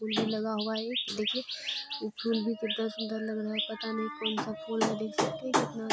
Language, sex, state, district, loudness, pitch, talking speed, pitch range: Hindi, female, Bihar, Jamui, -32 LUFS, 220 Hz, 255 wpm, 215-225 Hz